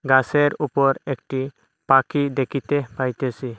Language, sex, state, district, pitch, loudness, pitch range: Bengali, male, Assam, Hailakandi, 135 Hz, -21 LUFS, 130-145 Hz